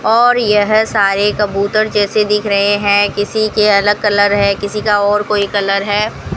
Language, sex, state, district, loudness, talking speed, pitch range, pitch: Hindi, female, Rajasthan, Bikaner, -13 LUFS, 180 wpm, 205-210 Hz, 205 Hz